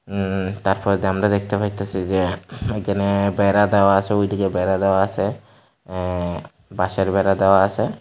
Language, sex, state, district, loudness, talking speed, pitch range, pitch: Bengali, male, Tripura, Unakoti, -20 LUFS, 150 wpm, 95-100 Hz, 95 Hz